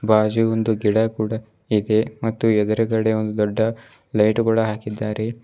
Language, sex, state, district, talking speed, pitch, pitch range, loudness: Kannada, male, Karnataka, Bidar, 130 wpm, 110 Hz, 110-115 Hz, -20 LUFS